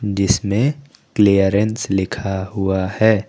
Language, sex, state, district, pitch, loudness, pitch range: Hindi, male, Jharkhand, Garhwa, 100 Hz, -18 LUFS, 95-110 Hz